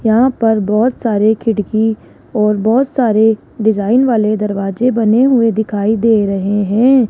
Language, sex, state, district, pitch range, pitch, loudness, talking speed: Hindi, female, Rajasthan, Jaipur, 210-235 Hz, 220 Hz, -13 LUFS, 145 wpm